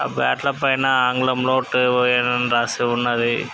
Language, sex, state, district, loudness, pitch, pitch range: Telugu, male, Andhra Pradesh, Krishna, -19 LUFS, 125 Hz, 120-130 Hz